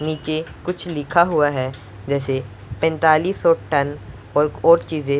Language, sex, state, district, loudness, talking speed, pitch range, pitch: Hindi, male, Punjab, Pathankot, -20 LUFS, 140 wpm, 135-160 Hz, 150 Hz